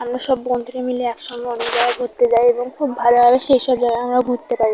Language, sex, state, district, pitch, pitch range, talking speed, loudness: Bengali, female, West Bengal, North 24 Parganas, 245 Hz, 240-250 Hz, 215 wpm, -17 LUFS